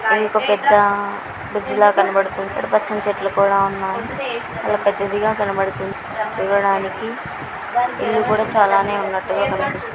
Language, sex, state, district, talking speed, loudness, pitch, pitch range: Telugu, female, Andhra Pradesh, Srikakulam, 110 wpm, -19 LUFS, 200 Hz, 195-210 Hz